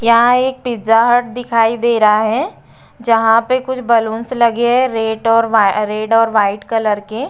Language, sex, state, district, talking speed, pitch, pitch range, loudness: Hindi, female, Uttar Pradesh, Budaun, 180 wpm, 230 Hz, 220-240 Hz, -14 LUFS